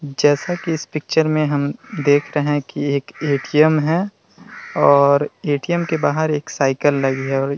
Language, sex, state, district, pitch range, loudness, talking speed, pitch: Hindi, male, Bihar, Vaishali, 140-155 Hz, -18 LUFS, 180 wpm, 145 Hz